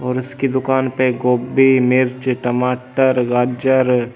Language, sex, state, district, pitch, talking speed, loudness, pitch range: Hindi, male, Delhi, New Delhi, 125 Hz, 115 wpm, -16 LUFS, 125-130 Hz